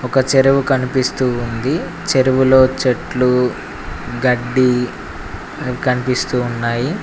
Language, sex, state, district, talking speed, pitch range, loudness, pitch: Telugu, male, Telangana, Mahabubabad, 75 wpm, 125-130 Hz, -16 LUFS, 125 Hz